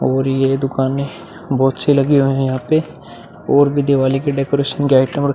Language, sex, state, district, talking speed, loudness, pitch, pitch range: Hindi, male, Uttar Pradesh, Muzaffarnagar, 215 wpm, -16 LUFS, 135 Hz, 135-145 Hz